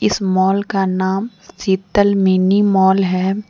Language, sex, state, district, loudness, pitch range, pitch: Hindi, female, Jharkhand, Deoghar, -16 LUFS, 190-200 Hz, 195 Hz